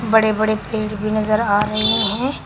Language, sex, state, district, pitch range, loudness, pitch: Hindi, female, Uttar Pradesh, Shamli, 215-220 Hz, -18 LUFS, 215 Hz